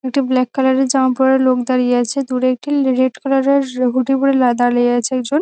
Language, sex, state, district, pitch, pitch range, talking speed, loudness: Bengali, female, West Bengal, North 24 Parganas, 260 Hz, 255-270 Hz, 265 wpm, -15 LUFS